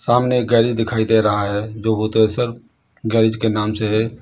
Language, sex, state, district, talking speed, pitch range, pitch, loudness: Hindi, male, Uttar Pradesh, Lalitpur, 200 wpm, 110-115 Hz, 110 Hz, -18 LUFS